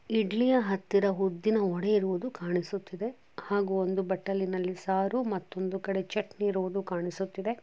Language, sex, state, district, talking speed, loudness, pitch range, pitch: Kannada, female, Karnataka, Chamarajanagar, 120 wpm, -30 LUFS, 190-210 Hz, 195 Hz